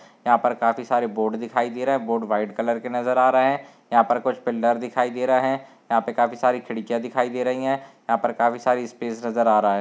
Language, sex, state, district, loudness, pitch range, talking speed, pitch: Hindi, male, Maharashtra, Nagpur, -22 LUFS, 115-125 Hz, 265 wpm, 120 Hz